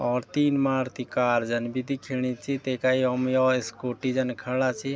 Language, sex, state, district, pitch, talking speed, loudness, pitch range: Garhwali, male, Uttarakhand, Tehri Garhwal, 130 Hz, 180 wpm, -26 LUFS, 125-130 Hz